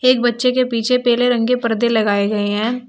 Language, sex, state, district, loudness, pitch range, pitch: Hindi, female, Uttar Pradesh, Shamli, -16 LUFS, 225-250 Hz, 240 Hz